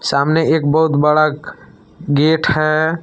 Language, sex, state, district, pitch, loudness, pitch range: Hindi, male, Jharkhand, Palamu, 155 Hz, -14 LUFS, 150-160 Hz